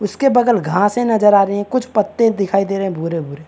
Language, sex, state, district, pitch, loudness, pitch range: Hindi, male, Chhattisgarh, Bastar, 205 Hz, -16 LUFS, 195-230 Hz